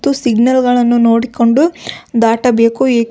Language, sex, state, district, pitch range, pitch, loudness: Kannada, female, Karnataka, Belgaum, 230-260 Hz, 240 Hz, -12 LUFS